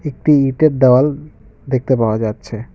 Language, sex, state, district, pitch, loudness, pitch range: Bengali, male, West Bengal, Cooch Behar, 130 Hz, -15 LUFS, 110-145 Hz